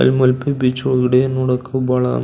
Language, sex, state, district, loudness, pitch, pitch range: Kannada, male, Karnataka, Belgaum, -17 LUFS, 130 Hz, 125-130 Hz